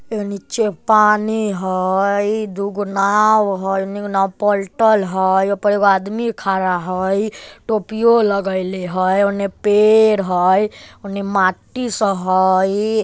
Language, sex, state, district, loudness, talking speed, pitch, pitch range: Bajjika, male, Bihar, Vaishali, -17 LUFS, 135 wpm, 200 Hz, 190-215 Hz